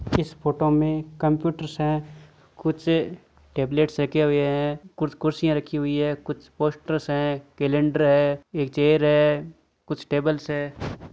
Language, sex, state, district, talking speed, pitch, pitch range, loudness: Hindi, male, Rajasthan, Churu, 140 wpm, 150 Hz, 145-155 Hz, -24 LUFS